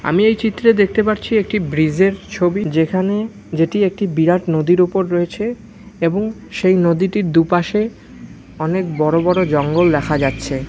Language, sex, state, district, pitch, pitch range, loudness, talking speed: Bengali, male, West Bengal, Malda, 185 Hz, 165-205 Hz, -16 LUFS, 150 wpm